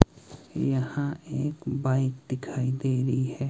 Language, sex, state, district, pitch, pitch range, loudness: Hindi, male, Himachal Pradesh, Shimla, 135 Hz, 130-140 Hz, -29 LUFS